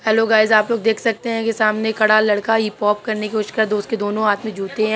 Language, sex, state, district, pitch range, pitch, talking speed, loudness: Hindi, male, Uttar Pradesh, Hamirpur, 210-225 Hz, 215 Hz, 290 wpm, -18 LUFS